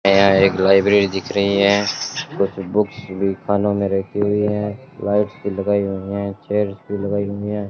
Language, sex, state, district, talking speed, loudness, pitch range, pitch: Hindi, male, Rajasthan, Bikaner, 195 wpm, -19 LUFS, 95-105 Hz, 100 Hz